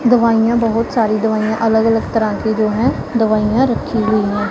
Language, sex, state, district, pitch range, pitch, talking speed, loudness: Hindi, female, Punjab, Pathankot, 215-230 Hz, 225 Hz, 185 wpm, -15 LUFS